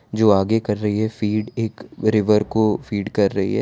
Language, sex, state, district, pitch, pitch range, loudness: Hindi, male, Gujarat, Valsad, 105 Hz, 105-110 Hz, -20 LUFS